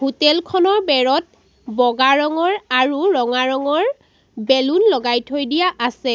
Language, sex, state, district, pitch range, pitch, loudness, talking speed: Assamese, female, Assam, Sonitpur, 255-355 Hz, 275 Hz, -17 LUFS, 125 wpm